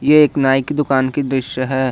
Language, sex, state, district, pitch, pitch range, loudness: Hindi, male, Jharkhand, Ranchi, 135 Hz, 130-145 Hz, -16 LUFS